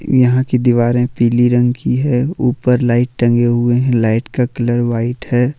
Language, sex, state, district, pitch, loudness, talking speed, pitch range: Hindi, male, Jharkhand, Ranchi, 120 Hz, -14 LUFS, 180 wpm, 120-125 Hz